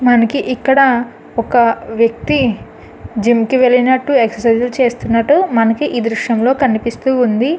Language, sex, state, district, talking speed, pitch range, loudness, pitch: Telugu, female, Andhra Pradesh, Anantapur, 120 wpm, 230-260 Hz, -14 LUFS, 240 Hz